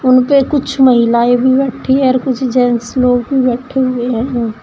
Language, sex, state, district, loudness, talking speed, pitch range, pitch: Hindi, female, Uttar Pradesh, Shamli, -12 LUFS, 205 wpm, 245-265 Hz, 255 Hz